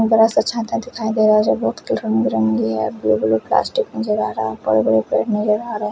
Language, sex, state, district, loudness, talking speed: Hindi, male, Odisha, Khordha, -18 LUFS, 255 wpm